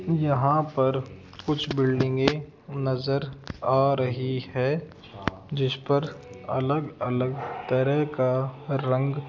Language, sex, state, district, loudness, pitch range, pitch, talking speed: Hindi, male, Rajasthan, Jaipur, -26 LUFS, 130-145 Hz, 135 Hz, 105 wpm